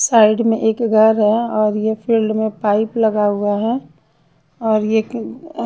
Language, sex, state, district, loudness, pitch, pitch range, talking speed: Hindi, female, Bihar, Patna, -16 LUFS, 220 Hz, 210-225 Hz, 180 wpm